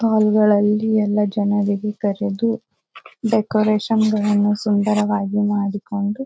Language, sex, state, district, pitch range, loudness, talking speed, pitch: Kannada, female, Karnataka, Bijapur, 205-215 Hz, -19 LUFS, 85 wpm, 210 Hz